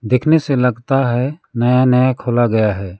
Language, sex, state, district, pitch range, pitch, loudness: Hindi, male, West Bengal, Alipurduar, 120-130 Hz, 125 Hz, -15 LUFS